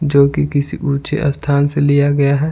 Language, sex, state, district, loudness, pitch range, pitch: Hindi, male, Bihar, Patna, -15 LUFS, 140-145 Hz, 145 Hz